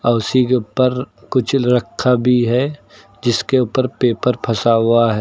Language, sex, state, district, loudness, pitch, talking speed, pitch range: Hindi, male, Uttar Pradesh, Lucknow, -16 LUFS, 125 Hz, 150 wpm, 115-125 Hz